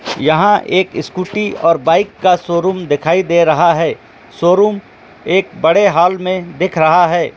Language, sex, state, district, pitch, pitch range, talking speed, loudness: Hindi, male, Jharkhand, Jamtara, 180 Hz, 165-190 Hz, 170 wpm, -13 LUFS